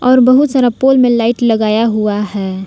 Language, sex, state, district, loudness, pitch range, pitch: Hindi, female, Jharkhand, Palamu, -12 LUFS, 215-255 Hz, 235 Hz